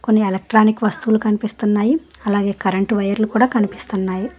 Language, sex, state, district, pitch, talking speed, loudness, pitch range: Telugu, female, Telangana, Hyderabad, 215 Hz, 125 wpm, -18 LUFS, 200-220 Hz